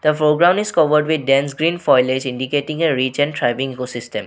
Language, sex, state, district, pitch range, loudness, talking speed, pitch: English, male, Assam, Sonitpur, 130-155 Hz, -17 LUFS, 210 wpm, 145 Hz